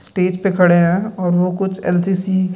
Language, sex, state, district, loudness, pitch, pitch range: Hindi, male, Bihar, Gaya, -16 LUFS, 185 Hz, 180-190 Hz